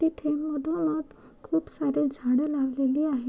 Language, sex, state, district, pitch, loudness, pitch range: Marathi, female, Maharashtra, Chandrapur, 295 Hz, -27 LUFS, 275-315 Hz